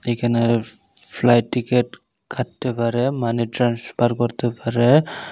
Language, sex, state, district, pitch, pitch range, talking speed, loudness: Bengali, male, Tripura, Unakoti, 120 Hz, 115-125 Hz, 100 wpm, -20 LUFS